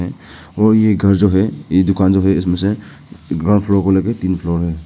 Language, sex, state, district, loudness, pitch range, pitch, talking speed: Hindi, male, Arunachal Pradesh, Papum Pare, -15 LUFS, 90-100 Hz, 95 Hz, 220 wpm